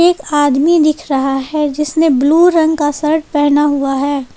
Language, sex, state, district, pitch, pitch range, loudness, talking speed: Hindi, female, Jharkhand, Palamu, 295 Hz, 285-320 Hz, -13 LUFS, 180 wpm